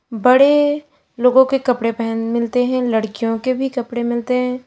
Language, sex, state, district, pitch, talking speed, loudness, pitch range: Hindi, female, Uttar Pradesh, Lalitpur, 250 Hz, 165 wpm, -17 LUFS, 230-255 Hz